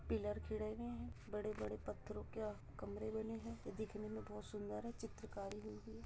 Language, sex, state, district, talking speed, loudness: Hindi, female, Uttar Pradesh, Muzaffarnagar, 170 wpm, -48 LUFS